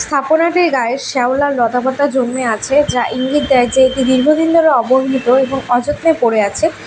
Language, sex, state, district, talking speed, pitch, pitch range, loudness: Bengali, female, West Bengal, Alipurduar, 165 wpm, 265 Hz, 250-295 Hz, -13 LUFS